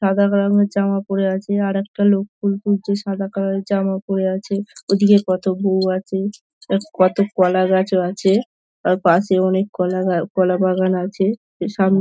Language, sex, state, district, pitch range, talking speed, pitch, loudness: Bengali, female, West Bengal, Dakshin Dinajpur, 185-200 Hz, 170 wpm, 195 Hz, -18 LUFS